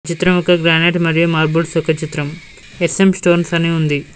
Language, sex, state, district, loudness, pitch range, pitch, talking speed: Telugu, male, Telangana, Mahabubabad, -14 LUFS, 160-175 Hz, 165 Hz, 160 wpm